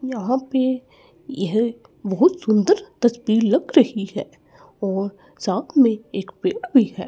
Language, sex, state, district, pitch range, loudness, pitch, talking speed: Hindi, male, Chandigarh, Chandigarh, 210-270 Hz, -20 LUFS, 240 Hz, 135 wpm